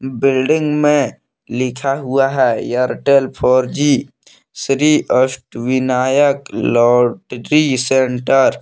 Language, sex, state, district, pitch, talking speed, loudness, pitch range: Hindi, male, Jharkhand, Palamu, 135 Hz, 85 wpm, -15 LUFS, 125-140 Hz